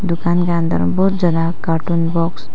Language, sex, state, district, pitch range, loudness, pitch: Hindi, female, Arunachal Pradesh, Papum Pare, 165-175 Hz, -17 LUFS, 170 Hz